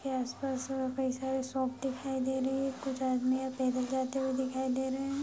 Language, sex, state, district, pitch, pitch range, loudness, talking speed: Hindi, female, Bihar, Madhepura, 265 Hz, 260-265 Hz, -34 LUFS, 205 wpm